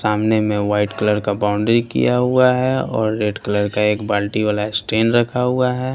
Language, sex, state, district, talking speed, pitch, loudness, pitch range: Hindi, male, Bihar, Patna, 190 wpm, 105 Hz, -18 LUFS, 105-120 Hz